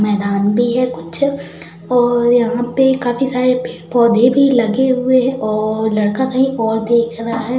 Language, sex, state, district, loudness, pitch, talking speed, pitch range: Hindi, female, Uttar Pradesh, Budaun, -15 LUFS, 240 Hz, 180 wpm, 220-255 Hz